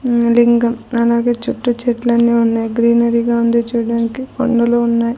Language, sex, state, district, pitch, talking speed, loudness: Telugu, female, Andhra Pradesh, Sri Satya Sai, 235 Hz, 140 wpm, -15 LUFS